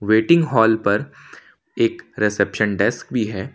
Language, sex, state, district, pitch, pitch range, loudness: Hindi, male, Jharkhand, Ranchi, 110 Hz, 100-115 Hz, -19 LUFS